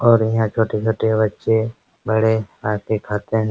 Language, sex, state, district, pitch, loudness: Hindi, male, Bihar, Araria, 110 Hz, -19 LUFS